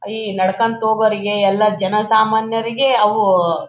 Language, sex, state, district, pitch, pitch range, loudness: Kannada, male, Karnataka, Bellary, 215 Hz, 200-220 Hz, -16 LUFS